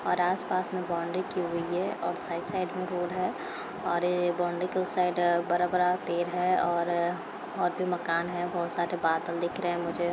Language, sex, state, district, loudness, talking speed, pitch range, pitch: Hindi, female, Uttar Pradesh, Etah, -29 LUFS, 200 wpm, 175-180 Hz, 175 Hz